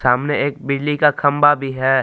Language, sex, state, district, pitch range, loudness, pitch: Hindi, male, Jharkhand, Palamu, 135-145 Hz, -17 LUFS, 140 Hz